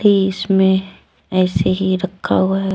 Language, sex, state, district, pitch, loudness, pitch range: Hindi, female, Jharkhand, Deoghar, 190 Hz, -17 LUFS, 185-195 Hz